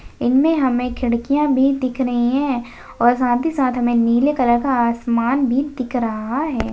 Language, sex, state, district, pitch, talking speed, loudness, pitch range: Hindi, female, Maharashtra, Solapur, 250 Hz, 180 wpm, -18 LUFS, 240-270 Hz